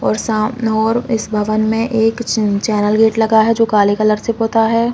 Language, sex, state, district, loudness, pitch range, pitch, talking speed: Hindi, female, Chhattisgarh, Bastar, -15 LUFS, 215-225 Hz, 220 Hz, 220 wpm